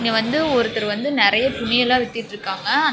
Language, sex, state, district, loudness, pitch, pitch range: Tamil, female, Tamil Nadu, Namakkal, -19 LUFS, 235 Hz, 220-265 Hz